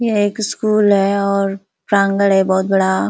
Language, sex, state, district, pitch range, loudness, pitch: Hindi, female, Uttar Pradesh, Ghazipur, 195-205 Hz, -15 LUFS, 200 Hz